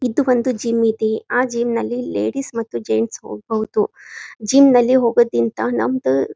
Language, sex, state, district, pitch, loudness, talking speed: Kannada, female, Karnataka, Gulbarga, 230 Hz, -18 LUFS, 140 wpm